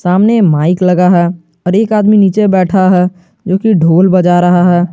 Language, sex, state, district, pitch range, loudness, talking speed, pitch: Hindi, male, Jharkhand, Garhwa, 175-195 Hz, -10 LUFS, 185 wpm, 180 Hz